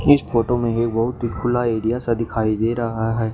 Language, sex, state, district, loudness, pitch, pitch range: Hindi, male, Haryana, Rohtak, -20 LUFS, 115 Hz, 115-120 Hz